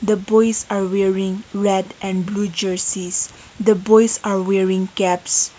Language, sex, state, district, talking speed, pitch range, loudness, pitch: English, female, Nagaland, Kohima, 140 wpm, 190-210 Hz, -18 LUFS, 195 Hz